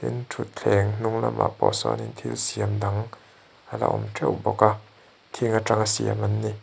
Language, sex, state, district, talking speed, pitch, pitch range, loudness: Mizo, male, Mizoram, Aizawl, 170 wpm, 105 Hz, 105-110 Hz, -25 LUFS